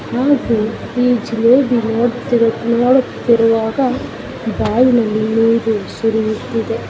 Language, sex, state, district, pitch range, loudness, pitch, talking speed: Kannada, female, Karnataka, Bellary, 225-245 Hz, -15 LUFS, 230 Hz, 70 wpm